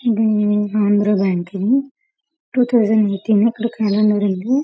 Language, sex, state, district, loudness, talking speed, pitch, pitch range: Telugu, female, Telangana, Karimnagar, -17 LUFS, 105 wpm, 215 Hz, 205-245 Hz